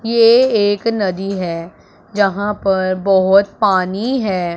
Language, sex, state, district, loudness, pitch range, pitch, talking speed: Hindi, male, Punjab, Pathankot, -15 LUFS, 185-215 Hz, 195 Hz, 120 wpm